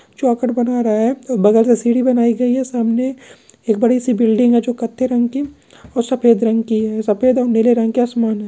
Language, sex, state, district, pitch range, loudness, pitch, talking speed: Hindi, female, Rajasthan, Churu, 230-250 Hz, -16 LUFS, 240 Hz, 210 wpm